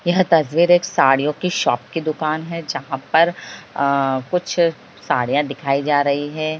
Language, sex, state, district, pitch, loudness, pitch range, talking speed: Hindi, female, Bihar, Lakhisarai, 155 Hz, -19 LUFS, 145-170 Hz, 165 wpm